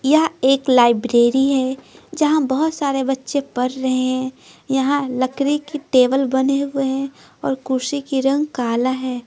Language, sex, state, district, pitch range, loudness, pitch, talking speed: Hindi, female, Bihar, Patna, 255-280 Hz, -19 LUFS, 270 Hz, 155 wpm